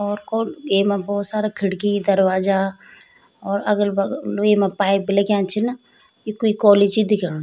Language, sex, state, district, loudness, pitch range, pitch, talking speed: Garhwali, female, Uttarakhand, Tehri Garhwal, -19 LUFS, 195-215 Hz, 205 Hz, 155 wpm